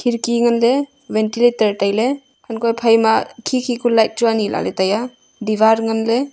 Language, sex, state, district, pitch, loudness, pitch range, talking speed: Wancho, female, Arunachal Pradesh, Longding, 235 Hz, -17 LUFS, 220-245 Hz, 160 wpm